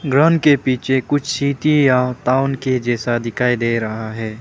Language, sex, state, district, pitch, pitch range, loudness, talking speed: Hindi, male, Arunachal Pradesh, Papum Pare, 130 Hz, 120-140 Hz, -17 LUFS, 175 wpm